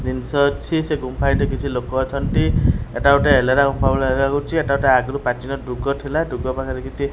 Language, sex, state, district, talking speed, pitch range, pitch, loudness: Odia, male, Odisha, Khordha, 200 wpm, 130-140 Hz, 135 Hz, -19 LUFS